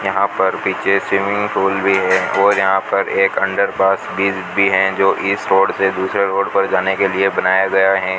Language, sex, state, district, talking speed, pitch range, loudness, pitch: Hindi, male, Rajasthan, Bikaner, 210 wpm, 95-100 Hz, -16 LUFS, 95 Hz